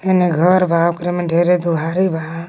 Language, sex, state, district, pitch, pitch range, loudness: Magahi, female, Jharkhand, Palamu, 175 Hz, 170-180 Hz, -16 LUFS